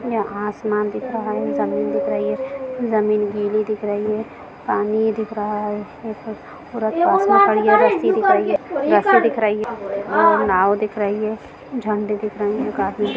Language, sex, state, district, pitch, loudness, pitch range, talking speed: Hindi, female, Bihar, Lakhisarai, 215 Hz, -19 LUFS, 205-225 Hz, 175 wpm